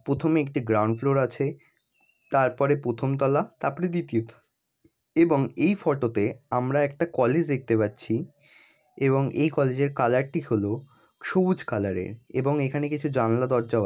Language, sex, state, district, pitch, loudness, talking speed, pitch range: Bengali, male, West Bengal, Jalpaiguri, 135 Hz, -25 LUFS, 150 wpm, 115-150 Hz